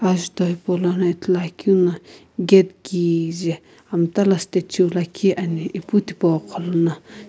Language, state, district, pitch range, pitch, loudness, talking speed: Sumi, Nagaland, Kohima, 170-190 Hz, 180 Hz, -20 LUFS, 130 wpm